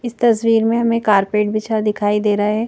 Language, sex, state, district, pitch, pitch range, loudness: Hindi, female, Madhya Pradesh, Bhopal, 215 Hz, 210-230 Hz, -16 LUFS